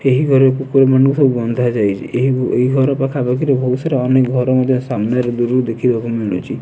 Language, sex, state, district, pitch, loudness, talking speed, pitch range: Odia, male, Odisha, Nuapada, 130 Hz, -15 LUFS, 180 wpm, 125-135 Hz